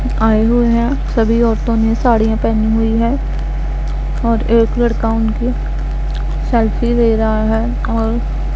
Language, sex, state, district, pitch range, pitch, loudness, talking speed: Hindi, female, Punjab, Pathankot, 225-235 Hz, 230 Hz, -15 LUFS, 140 wpm